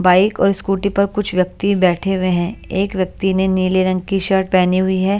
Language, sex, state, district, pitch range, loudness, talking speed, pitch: Hindi, female, Chhattisgarh, Raipur, 185-195 Hz, -17 LUFS, 220 wpm, 190 Hz